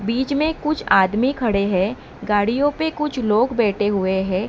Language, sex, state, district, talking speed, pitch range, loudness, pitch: Hindi, female, Maharashtra, Mumbai Suburban, 175 wpm, 200-280 Hz, -20 LUFS, 225 Hz